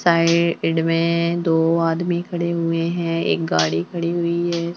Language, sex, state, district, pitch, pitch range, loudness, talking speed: Hindi, female, Uttarakhand, Tehri Garhwal, 170 Hz, 165-170 Hz, -20 LUFS, 165 wpm